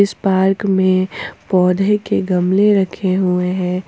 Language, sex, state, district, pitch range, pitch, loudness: Hindi, female, Jharkhand, Ranchi, 185-195 Hz, 190 Hz, -16 LUFS